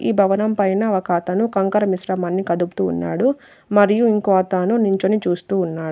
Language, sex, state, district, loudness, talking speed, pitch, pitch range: Telugu, female, Telangana, Adilabad, -18 LUFS, 140 wpm, 195 Hz, 180-210 Hz